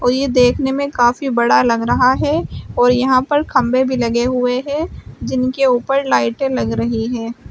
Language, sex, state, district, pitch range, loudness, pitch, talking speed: Hindi, female, Uttar Pradesh, Shamli, 240-265 Hz, -16 LUFS, 255 Hz, 185 wpm